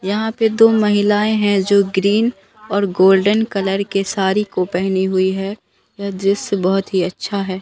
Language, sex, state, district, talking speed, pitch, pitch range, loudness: Hindi, female, Bihar, Katihar, 175 wpm, 200 Hz, 190-210 Hz, -16 LUFS